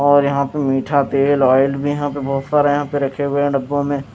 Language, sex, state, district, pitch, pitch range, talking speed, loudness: Hindi, male, Chhattisgarh, Raipur, 140 Hz, 135-145 Hz, 245 wpm, -17 LUFS